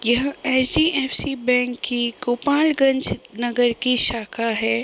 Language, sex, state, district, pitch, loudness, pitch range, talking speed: Hindi, female, Uttar Pradesh, Deoria, 250 Hz, -19 LUFS, 240-270 Hz, 150 wpm